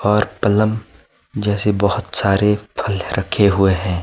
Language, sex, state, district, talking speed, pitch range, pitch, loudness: Hindi, male, Himachal Pradesh, Shimla, 135 wpm, 95-105 Hz, 100 Hz, -17 LUFS